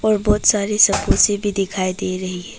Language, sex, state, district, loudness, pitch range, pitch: Hindi, female, Arunachal Pradesh, Papum Pare, -17 LUFS, 185-210 Hz, 200 Hz